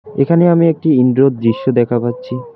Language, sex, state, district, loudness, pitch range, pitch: Bengali, male, West Bengal, Alipurduar, -13 LUFS, 120-165 Hz, 130 Hz